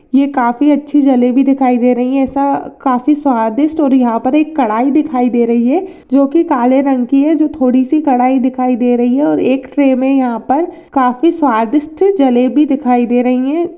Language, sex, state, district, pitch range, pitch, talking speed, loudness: Hindi, female, Rajasthan, Churu, 250-295 Hz, 270 Hz, 200 wpm, -12 LUFS